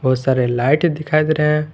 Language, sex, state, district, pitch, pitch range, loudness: Hindi, male, Jharkhand, Garhwa, 150 Hz, 130-155 Hz, -17 LUFS